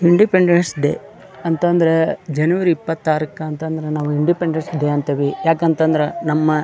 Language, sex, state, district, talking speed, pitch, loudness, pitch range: Kannada, male, Karnataka, Dharwad, 125 wpm, 160 Hz, -18 LUFS, 150-170 Hz